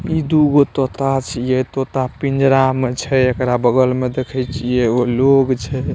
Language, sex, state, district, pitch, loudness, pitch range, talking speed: Maithili, male, Bihar, Saharsa, 130 Hz, -16 LUFS, 125-135 Hz, 160 wpm